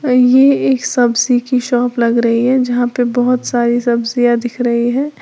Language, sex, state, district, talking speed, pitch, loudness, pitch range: Hindi, female, Uttar Pradesh, Lalitpur, 185 wpm, 245 Hz, -13 LUFS, 240-250 Hz